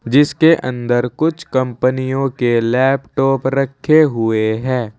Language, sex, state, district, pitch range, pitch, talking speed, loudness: Hindi, male, Uttar Pradesh, Saharanpur, 120-140 Hz, 130 Hz, 110 wpm, -16 LUFS